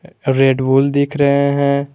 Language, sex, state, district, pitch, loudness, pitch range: Hindi, male, Jharkhand, Garhwa, 140 Hz, -15 LUFS, 135-140 Hz